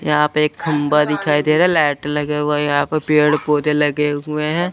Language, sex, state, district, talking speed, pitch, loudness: Hindi, male, Chandigarh, Chandigarh, 240 wpm, 150 Hz, -17 LUFS